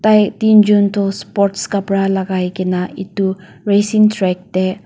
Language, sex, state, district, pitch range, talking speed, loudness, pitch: Nagamese, female, Nagaland, Dimapur, 185-205 Hz, 135 wpm, -15 LUFS, 195 Hz